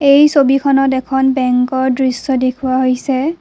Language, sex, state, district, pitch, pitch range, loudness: Assamese, female, Assam, Kamrup Metropolitan, 265 Hz, 260-275 Hz, -14 LUFS